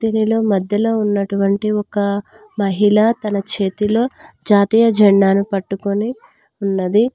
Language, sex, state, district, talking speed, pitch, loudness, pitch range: Telugu, female, Telangana, Mahabubabad, 90 wpm, 210 Hz, -16 LUFS, 200-220 Hz